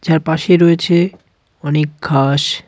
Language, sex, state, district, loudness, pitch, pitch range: Bengali, male, West Bengal, Cooch Behar, -14 LUFS, 160 Hz, 150-170 Hz